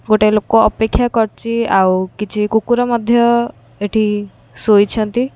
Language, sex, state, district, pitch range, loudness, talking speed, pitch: Odia, female, Odisha, Khordha, 210-235 Hz, -15 LUFS, 110 wpm, 220 Hz